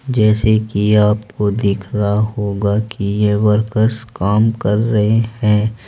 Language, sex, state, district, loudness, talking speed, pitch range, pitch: Hindi, male, Uttar Pradesh, Saharanpur, -16 LUFS, 130 wpm, 105-110 Hz, 105 Hz